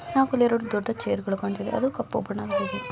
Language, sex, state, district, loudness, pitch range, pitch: Kannada, female, Karnataka, Mysore, -26 LUFS, 205-260 Hz, 230 Hz